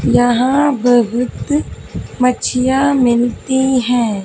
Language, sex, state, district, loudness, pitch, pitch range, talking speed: Hindi, female, Haryana, Jhajjar, -14 LUFS, 250 Hz, 240-265 Hz, 70 wpm